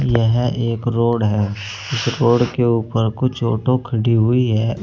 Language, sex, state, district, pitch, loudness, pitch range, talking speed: Hindi, male, Uttar Pradesh, Saharanpur, 115 Hz, -18 LUFS, 110-120 Hz, 160 wpm